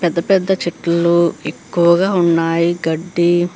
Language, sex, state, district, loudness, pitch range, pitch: Telugu, female, Andhra Pradesh, Chittoor, -15 LUFS, 170-175 Hz, 170 Hz